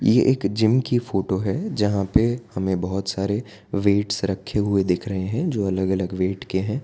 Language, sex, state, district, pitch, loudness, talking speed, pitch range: Hindi, male, Gujarat, Valsad, 100 Hz, -23 LUFS, 210 wpm, 95-110 Hz